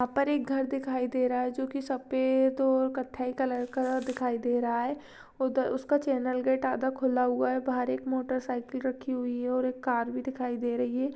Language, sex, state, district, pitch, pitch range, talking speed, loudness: Hindi, female, Maharashtra, Chandrapur, 260 Hz, 250-265 Hz, 215 wpm, -30 LUFS